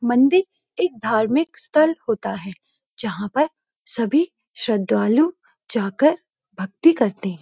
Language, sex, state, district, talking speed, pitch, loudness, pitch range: Hindi, female, Uttarakhand, Uttarkashi, 115 wpm, 245 Hz, -20 LUFS, 220-325 Hz